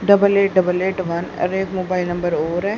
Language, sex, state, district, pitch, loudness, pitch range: Hindi, female, Haryana, Rohtak, 185 Hz, -19 LUFS, 175-195 Hz